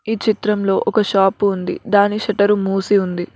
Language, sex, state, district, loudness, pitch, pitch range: Telugu, female, Telangana, Mahabubabad, -17 LUFS, 200 Hz, 195-210 Hz